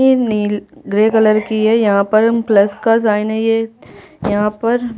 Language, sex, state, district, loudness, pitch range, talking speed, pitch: Hindi, female, Chhattisgarh, Jashpur, -15 LUFS, 210-225 Hz, 180 wpm, 220 Hz